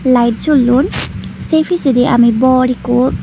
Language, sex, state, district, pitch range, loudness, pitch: Chakma, female, Tripura, Unakoti, 245-270 Hz, -12 LUFS, 255 Hz